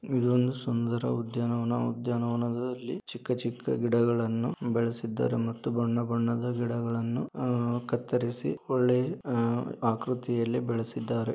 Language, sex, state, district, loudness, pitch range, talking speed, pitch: Kannada, male, Karnataka, Dharwad, -30 LUFS, 115-125 Hz, 90 wpm, 120 Hz